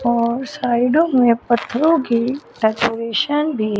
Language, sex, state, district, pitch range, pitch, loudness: Hindi, female, Chandigarh, Chandigarh, 235-270 Hz, 240 Hz, -18 LUFS